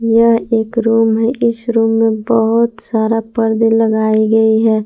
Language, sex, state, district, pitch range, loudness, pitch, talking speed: Hindi, female, Jharkhand, Palamu, 220-230 Hz, -13 LUFS, 225 Hz, 160 wpm